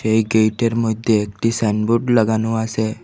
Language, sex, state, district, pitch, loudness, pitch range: Bengali, male, Assam, Hailakandi, 110 Hz, -18 LUFS, 110-115 Hz